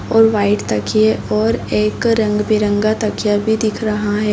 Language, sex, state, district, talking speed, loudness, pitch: Hindi, female, Bihar, Sitamarhi, 150 wpm, -16 LUFS, 210 Hz